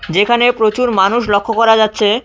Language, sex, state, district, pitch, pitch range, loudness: Bengali, male, West Bengal, Cooch Behar, 220 Hz, 205-240 Hz, -12 LUFS